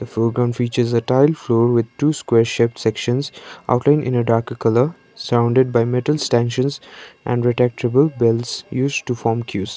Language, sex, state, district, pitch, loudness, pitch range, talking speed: English, male, Sikkim, Gangtok, 120 Hz, -18 LUFS, 115-130 Hz, 145 wpm